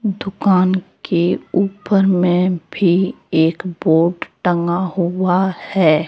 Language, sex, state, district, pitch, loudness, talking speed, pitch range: Hindi, female, Jharkhand, Deoghar, 180 Hz, -17 LUFS, 100 wpm, 170-190 Hz